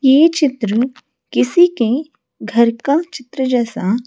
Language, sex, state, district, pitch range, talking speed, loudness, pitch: Hindi, female, Odisha, Malkangiri, 235-295 Hz, 120 wpm, -16 LUFS, 255 Hz